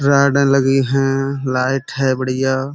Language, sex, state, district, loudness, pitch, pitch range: Hindi, male, Uttar Pradesh, Budaun, -16 LUFS, 135 Hz, 130-135 Hz